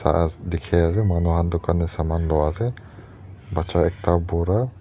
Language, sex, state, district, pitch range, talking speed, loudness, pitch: Nagamese, male, Nagaland, Dimapur, 85-95 Hz, 160 wpm, -22 LUFS, 85 Hz